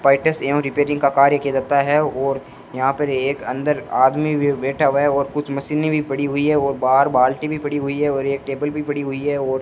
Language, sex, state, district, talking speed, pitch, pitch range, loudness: Hindi, male, Rajasthan, Bikaner, 250 wpm, 140 Hz, 135-145 Hz, -19 LUFS